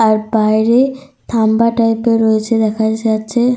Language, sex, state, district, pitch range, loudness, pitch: Bengali, female, Jharkhand, Sahebganj, 220-235 Hz, -14 LUFS, 225 Hz